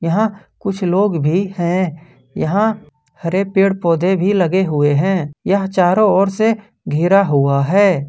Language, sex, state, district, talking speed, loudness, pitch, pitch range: Hindi, male, Jharkhand, Ranchi, 150 wpm, -16 LUFS, 185 Hz, 165-200 Hz